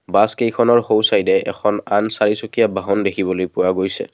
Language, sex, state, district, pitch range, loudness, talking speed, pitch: Assamese, male, Assam, Kamrup Metropolitan, 95-115 Hz, -17 LUFS, 175 wpm, 105 Hz